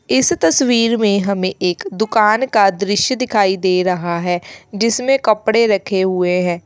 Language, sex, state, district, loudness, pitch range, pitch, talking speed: Hindi, female, Uttar Pradesh, Lalitpur, -15 LUFS, 185-225 Hz, 200 Hz, 145 wpm